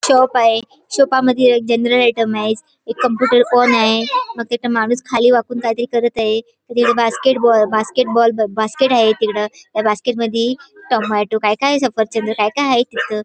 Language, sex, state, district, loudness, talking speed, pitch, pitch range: Marathi, female, Goa, North and South Goa, -15 LUFS, 170 wpm, 235 Hz, 220-250 Hz